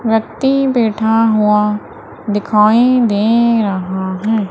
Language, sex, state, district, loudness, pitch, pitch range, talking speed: Hindi, female, Madhya Pradesh, Umaria, -13 LUFS, 220 Hz, 210-230 Hz, 95 wpm